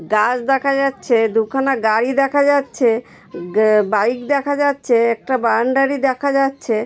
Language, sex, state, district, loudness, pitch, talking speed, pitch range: Bengali, female, West Bengal, Dakshin Dinajpur, -17 LUFS, 255 Hz, 130 wpm, 225-275 Hz